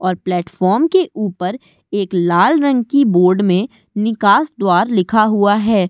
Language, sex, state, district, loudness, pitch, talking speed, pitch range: Hindi, female, Uttar Pradesh, Budaun, -15 LUFS, 205 Hz, 155 wpm, 185-235 Hz